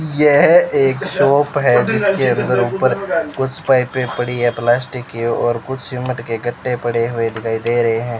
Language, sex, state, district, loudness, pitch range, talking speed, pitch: Hindi, male, Rajasthan, Bikaner, -16 LUFS, 115-135 Hz, 175 wpm, 125 Hz